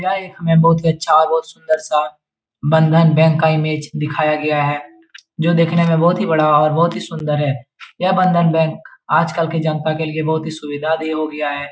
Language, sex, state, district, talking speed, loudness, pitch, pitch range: Hindi, male, Bihar, Jahanabad, 220 wpm, -16 LUFS, 160 Hz, 150-165 Hz